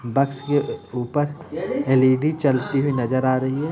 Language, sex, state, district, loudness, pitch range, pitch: Hindi, male, Bihar, East Champaran, -21 LUFS, 130-145 Hz, 135 Hz